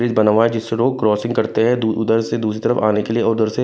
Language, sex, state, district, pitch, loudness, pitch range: Hindi, male, Punjab, Kapurthala, 115 Hz, -17 LUFS, 110-115 Hz